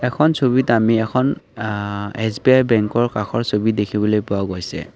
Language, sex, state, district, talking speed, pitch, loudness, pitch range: Assamese, male, Assam, Kamrup Metropolitan, 145 wpm, 110 Hz, -18 LUFS, 105-125 Hz